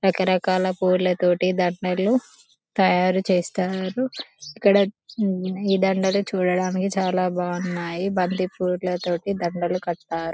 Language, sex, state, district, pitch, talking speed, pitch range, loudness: Telugu, female, Telangana, Karimnagar, 185 Hz, 95 wpm, 180-190 Hz, -23 LUFS